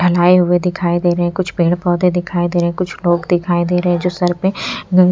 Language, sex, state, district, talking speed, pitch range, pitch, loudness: Hindi, female, Punjab, Pathankot, 270 wpm, 175-180 Hz, 175 Hz, -15 LUFS